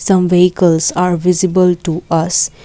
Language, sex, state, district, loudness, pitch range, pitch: English, female, Assam, Kamrup Metropolitan, -13 LUFS, 165-180 Hz, 180 Hz